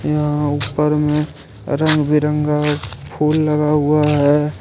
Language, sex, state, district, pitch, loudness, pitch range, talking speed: Hindi, male, Jharkhand, Ranchi, 150 Hz, -17 LUFS, 145-150 Hz, 115 wpm